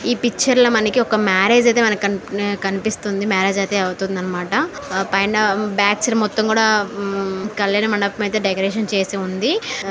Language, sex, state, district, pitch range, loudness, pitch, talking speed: Telugu, female, Andhra Pradesh, Visakhapatnam, 195-220 Hz, -18 LUFS, 205 Hz, 110 wpm